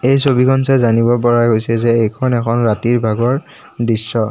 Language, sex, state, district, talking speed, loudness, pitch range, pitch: Assamese, male, Assam, Kamrup Metropolitan, 165 wpm, -14 LUFS, 115-125 Hz, 120 Hz